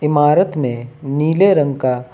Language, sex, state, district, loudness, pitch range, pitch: Hindi, male, Uttar Pradesh, Lucknow, -15 LUFS, 130-150 Hz, 145 Hz